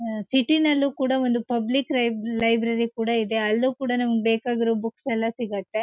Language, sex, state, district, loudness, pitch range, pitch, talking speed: Kannada, female, Karnataka, Shimoga, -23 LUFS, 225-260 Hz, 230 Hz, 175 wpm